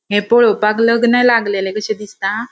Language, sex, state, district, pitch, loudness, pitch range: Konkani, female, Goa, North and South Goa, 215 Hz, -14 LUFS, 205-235 Hz